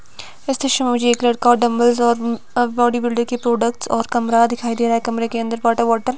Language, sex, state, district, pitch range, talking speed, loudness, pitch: Hindi, female, Himachal Pradesh, Shimla, 230-240 Hz, 240 wpm, -17 LUFS, 235 Hz